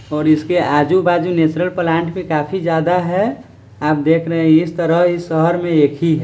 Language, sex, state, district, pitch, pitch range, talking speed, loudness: Hindi, male, Bihar, Sitamarhi, 165 Hz, 155-175 Hz, 190 wpm, -15 LUFS